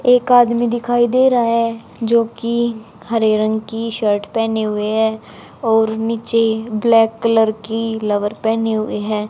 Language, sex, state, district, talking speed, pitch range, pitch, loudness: Hindi, female, Haryana, Charkhi Dadri, 155 wpm, 220-230 Hz, 225 Hz, -17 LUFS